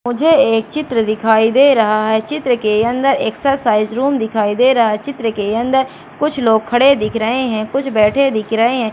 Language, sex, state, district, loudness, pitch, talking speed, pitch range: Hindi, female, Madhya Pradesh, Katni, -14 LUFS, 230 Hz, 200 wpm, 220-270 Hz